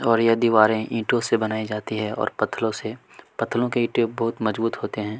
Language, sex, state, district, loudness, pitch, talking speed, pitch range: Hindi, male, Chhattisgarh, Kabirdham, -23 LUFS, 115 Hz, 230 wpm, 110-115 Hz